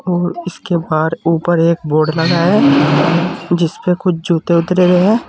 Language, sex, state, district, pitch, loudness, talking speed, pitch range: Hindi, male, Uttar Pradesh, Saharanpur, 170 Hz, -14 LUFS, 160 wpm, 165-180 Hz